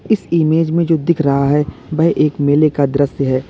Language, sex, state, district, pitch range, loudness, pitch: Hindi, male, Uttar Pradesh, Lalitpur, 140-165 Hz, -15 LUFS, 150 Hz